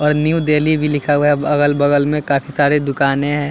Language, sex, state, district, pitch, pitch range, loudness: Hindi, male, Chandigarh, Chandigarh, 145 Hz, 145-150 Hz, -15 LUFS